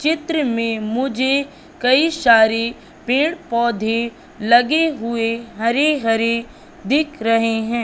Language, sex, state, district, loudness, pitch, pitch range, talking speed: Hindi, female, Madhya Pradesh, Katni, -18 LUFS, 235 Hz, 230-285 Hz, 105 wpm